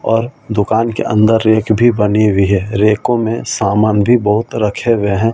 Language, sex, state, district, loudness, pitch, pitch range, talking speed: Hindi, male, Delhi, New Delhi, -13 LUFS, 110 Hz, 105-115 Hz, 215 wpm